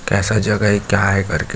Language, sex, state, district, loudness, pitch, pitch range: Hindi, male, Chhattisgarh, Jashpur, -16 LUFS, 100 Hz, 100-105 Hz